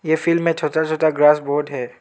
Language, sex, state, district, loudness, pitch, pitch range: Hindi, male, Arunachal Pradesh, Lower Dibang Valley, -18 LUFS, 155 Hz, 150-160 Hz